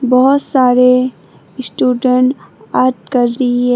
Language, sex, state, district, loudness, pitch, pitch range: Hindi, female, Tripura, Dhalai, -13 LUFS, 255 Hz, 250-260 Hz